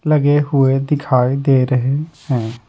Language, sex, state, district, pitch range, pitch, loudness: Hindi, male, Bihar, Patna, 130-145 Hz, 135 Hz, -16 LUFS